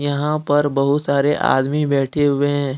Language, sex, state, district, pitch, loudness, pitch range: Hindi, male, Jharkhand, Deoghar, 145 Hz, -18 LUFS, 140-145 Hz